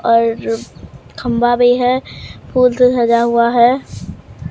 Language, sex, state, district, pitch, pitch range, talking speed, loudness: Hindi, female, Bihar, Katihar, 235 Hz, 230-245 Hz, 120 wpm, -14 LUFS